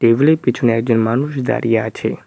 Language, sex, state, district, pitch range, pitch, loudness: Bengali, male, West Bengal, Cooch Behar, 115-135 Hz, 120 Hz, -16 LUFS